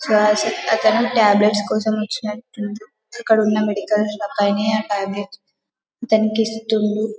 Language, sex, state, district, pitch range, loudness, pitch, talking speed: Telugu, female, Telangana, Karimnagar, 210-220 Hz, -19 LUFS, 215 Hz, 115 wpm